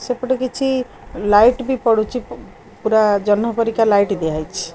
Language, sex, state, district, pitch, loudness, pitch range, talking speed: Odia, female, Odisha, Khordha, 225 Hz, -17 LUFS, 205-250 Hz, 150 wpm